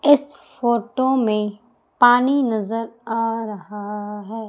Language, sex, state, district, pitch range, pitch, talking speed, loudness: Hindi, female, Madhya Pradesh, Umaria, 210-245 Hz, 230 Hz, 105 wpm, -20 LUFS